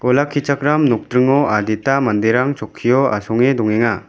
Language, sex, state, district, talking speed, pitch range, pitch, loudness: Garo, male, Meghalaya, West Garo Hills, 105 wpm, 110-140 Hz, 125 Hz, -16 LUFS